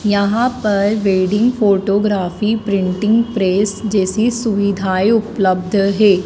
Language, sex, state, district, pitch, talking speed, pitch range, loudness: Hindi, female, Madhya Pradesh, Dhar, 205 Hz, 95 wpm, 195-220 Hz, -15 LUFS